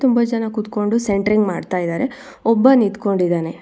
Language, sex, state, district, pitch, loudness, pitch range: Kannada, female, Karnataka, Bangalore, 215 Hz, -18 LUFS, 200-235 Hz